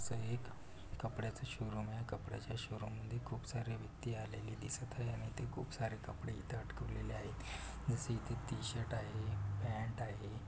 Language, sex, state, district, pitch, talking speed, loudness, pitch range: Marathi, male, Maharashtra, Pune, 110 Hz, 150 wpm, -44 LUFS, 105-120 Hz